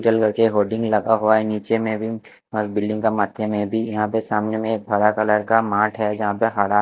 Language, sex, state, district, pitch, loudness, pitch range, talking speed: Hindi, male, Chandigarh, Chandigarh, 110 Hz, -20 LUFS, 105-110 Hz, 255 wpm